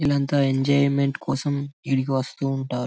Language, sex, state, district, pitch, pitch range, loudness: Telugu, male, Telangana, Karimnagar, 140 Hz, 135-140 Hz, -23 LUFS